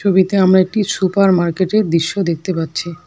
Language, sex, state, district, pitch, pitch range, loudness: Bengali, female, West Bengal, Alipurduar, 185 Hz, 170-195 Hz, -15 LUFS